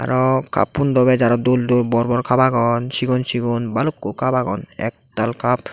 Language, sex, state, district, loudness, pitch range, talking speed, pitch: Chakma, male, Tripura, Dhalai, -18 LUFS, 120-130 Hz, 165 wpm, 125 Hz